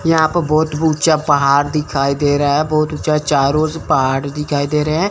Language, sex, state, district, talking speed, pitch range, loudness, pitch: Hindi, male, Chandigarh, Chandigarh, 220 wpm, 145-155 Hz, -15 LUFS, 150 Hz